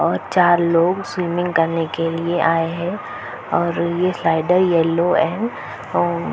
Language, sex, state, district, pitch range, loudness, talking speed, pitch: Hindi, female, Chhattisgarh, Balrampur, 165-180 Hz, -18 LUFS, 140 wpm, 170 Hz